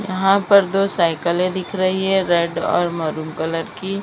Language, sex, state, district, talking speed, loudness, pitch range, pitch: Hindi, female, Maharashtra, Mumbai Suburban, 180 wpm, -19 LUFS, 170-195 Hz, 185 Hz